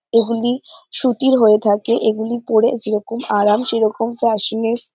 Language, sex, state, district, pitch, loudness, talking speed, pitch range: Bengali, female, West Bengal, North 24 Parganas, 230 Hz, -17 LUFS, 120 wpm, 220-240 Hz